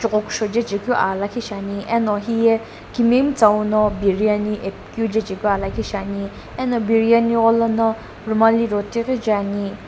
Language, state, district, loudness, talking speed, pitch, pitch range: Sumi, Nagaland, Dimapur, -19 LUFS, 145 wpm, 220 Hz, 205-230 Hz